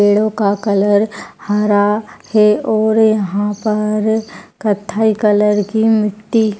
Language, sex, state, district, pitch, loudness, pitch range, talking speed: Hindi, female, Uttar Pradesh, Etah, 210 Hz, -15 LUFS, 205-220 Hz, 120 wpm